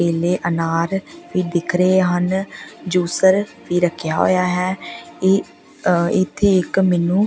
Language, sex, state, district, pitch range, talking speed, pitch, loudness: Punjabi, female, Punjab, Pathankot, 175-190 Hz, 130 wpm, 180 Hz, -18 LUFS